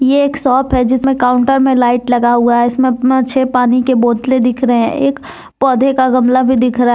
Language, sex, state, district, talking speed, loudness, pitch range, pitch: Hindi, female, Jharkhand, Deoghar, 235 wpm, -12 LUFS, 245-265 Hz, 255 Hz